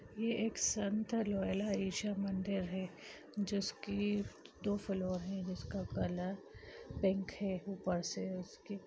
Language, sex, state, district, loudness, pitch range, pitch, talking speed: Hindi, female, Chhattisgarh, Sarguja, -39 LUFS, 190-205 Hz, 195 Hz, 110 wpm